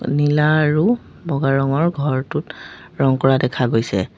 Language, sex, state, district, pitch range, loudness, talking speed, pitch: Assamese, female, Assam, Sonitpur, 130-155 Hz, -18 LUFS, 130 wpm, 140 Hz